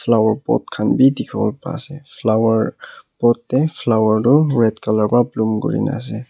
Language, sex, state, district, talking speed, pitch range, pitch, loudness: Nagamese, male, Nagaland, Kohima, 180 wpm, 110-135 Hz, 120 Hz, -17 LUFS